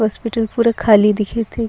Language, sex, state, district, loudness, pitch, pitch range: Sadri, female, Chhattisgarh, Jashpur, -16 LUFS, 225 Hz, 210-230 Hz